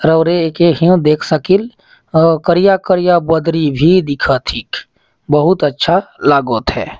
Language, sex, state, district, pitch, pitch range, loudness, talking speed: Chhattisgarhi, male, Chhattisgarh, Jashpur, 165 Hz, 150-180 Hz, -13 LUFS, 135 wpm